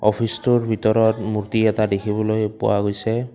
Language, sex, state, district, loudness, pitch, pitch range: Assamese, male, Assam, Kamrup Metropolitan, -20 LUFS, 110 Hz, 105-115 Hz